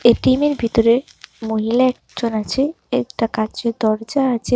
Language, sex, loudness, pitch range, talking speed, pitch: Bengali, male, -19 LUFS, 225-260 Hz, 120 wpm, 235 Hz